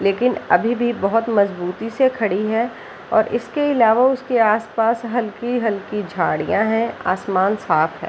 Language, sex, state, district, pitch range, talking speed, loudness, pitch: Hindi, female, Bihar, Jahanabad, 205-235 Hz, 150 wpm, -19 LUFS, 225 Hz